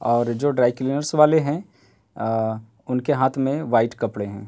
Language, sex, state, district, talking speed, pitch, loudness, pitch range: Hindi, male, Uttar Pradesh, Hamirpur, 175 wpm, 120 Hz, -21 LUFS, 110-140 Hz